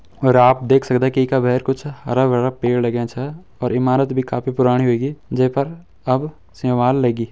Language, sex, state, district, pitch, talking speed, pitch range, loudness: Garhwali, male, Uttarakhand, Uttarkashi, 130 Hz, 180 wpm, 125-135 Hz, -18 LUFS